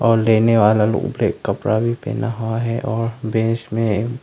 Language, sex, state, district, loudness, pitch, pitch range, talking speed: Hindi, male, Arunachal Pradesh, Longding, -19 LUFS, 115 Hz, 110-115 Hz, 185 wpm